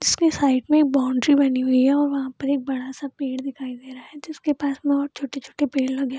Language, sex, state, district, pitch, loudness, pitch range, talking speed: Hindi, female, Bihar, Madhepura, 275 Hz, -22 LUFS, 260-285 Hz, 240 wpm